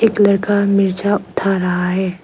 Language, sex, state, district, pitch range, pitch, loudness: Hindi, female, Arunachal Pradesh, Lower Dibang Valley, 185-205 Hz, 195 Hz, -16 LUFS